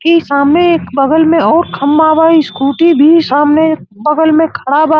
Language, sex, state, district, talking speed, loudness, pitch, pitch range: Bhojpuri, male, Uttar Pradesh, Gorakhpur, 180 wpm, -10 LUFS, 315 Hz, 285-325 Hz